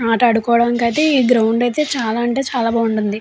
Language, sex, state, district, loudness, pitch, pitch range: Telugu, female, Andhra Pradesh, Chittoor, -16 LUFS, 235 Hz, 230-245 Hz